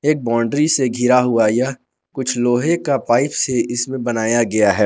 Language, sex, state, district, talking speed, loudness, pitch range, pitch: Hindi, male, Jharkhand, Garhwa, 195 wpm, -17 LUFS, 115-135 Hz, 120 Hz